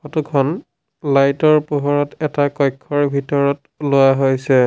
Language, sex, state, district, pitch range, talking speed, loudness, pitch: Assamese, male, Assam, Sonitpur, 140-150 Hz, 130 wpm, -17 LUFS, 145 Hz